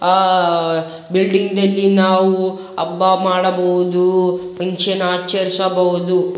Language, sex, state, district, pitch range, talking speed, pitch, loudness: Kannada, male, Karnataka, Raichur, 180-190 Hz, 85 wpm, 185 Hz, -16 LUFS